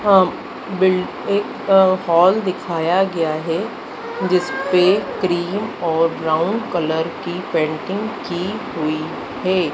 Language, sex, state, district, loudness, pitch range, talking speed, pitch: Hindi, female, Madhya Pradesh, Dhar, -19 LUFS, 165-190 Hz, 105 wpm, 180 Hz